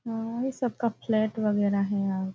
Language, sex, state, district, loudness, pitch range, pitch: Hindi, female, Bihar, Jahanabad, -28 LUFS, 200-235 Hz, 215 Hz